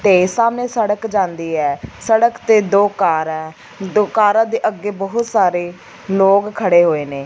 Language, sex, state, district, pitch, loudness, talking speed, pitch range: Punjabi, female, Punjab, Fazilka, 195 Hz, -16 LUFS, 165 wpm, 170-220 Hz